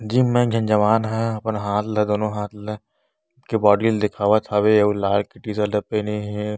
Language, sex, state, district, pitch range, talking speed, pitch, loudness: Chhattisgarhi, male, Chhattisgarh, Bastar, 105-110 Hz, 225 wpm, 105 Hz, -20 LUFS